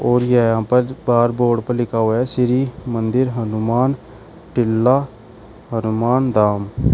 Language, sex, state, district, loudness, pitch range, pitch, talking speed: Hindi, male, Uttar Pradesh, Shamli, -18 LUFS, 115-125 Hz, 120 Hz, 140 wpm